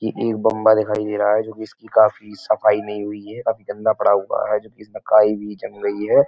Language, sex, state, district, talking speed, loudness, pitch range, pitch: Hindi, male, Uttar Pradesh, Etah, 275 wpm, -19 LUFS, 105-110 Hz, 105 Hz